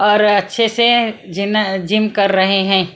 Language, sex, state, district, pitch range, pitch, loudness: Hindi, female, Punjab, Kapurthala, 195-215 Hz, 205 Hz, -14 LUFS